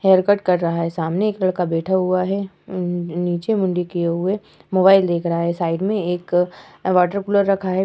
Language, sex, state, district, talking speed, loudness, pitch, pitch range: Hindi, female, Uttar Pradesh, Etah, 200 wpm, -20 LUFS, 180 Hz, 175-195 Hz